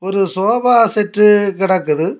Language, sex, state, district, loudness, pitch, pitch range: Tamil, male, Tamil Nadu, Kanyakumari, -13 LUFS, 200 Hz, 190-210 Hz